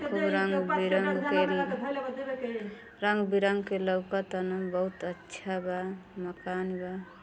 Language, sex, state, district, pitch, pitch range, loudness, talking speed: Bhojpuri, female, Uttar Pradesh, Gorakhpur, 190 Hz, 185-200 Hz, -31 LUFS, 110 wpm